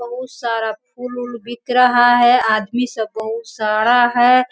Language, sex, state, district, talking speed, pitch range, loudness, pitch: Hindi, female, Bihar, Sitamarhi, 160 wpm, 225-245 Hz, -16 LUFS, 240 Hz